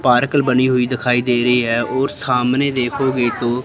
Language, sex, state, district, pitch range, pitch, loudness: Hindi, female, Chandigarh, Chandigarh, 125-130 Hz, 125 Hz, -16 LUFS